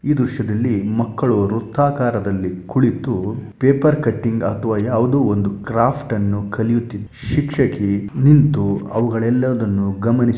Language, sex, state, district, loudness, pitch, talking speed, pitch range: Kannada, male, Karnataka, Shimoga, -18 LUFS, 115 Hz, 100 wpm, 105-130 Hz